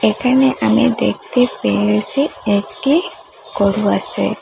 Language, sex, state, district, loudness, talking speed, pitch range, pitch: Bengali, female, Assam, Hailakandi, -16 LUFS, 95 wpm, 200-270 Hz, 245 Hz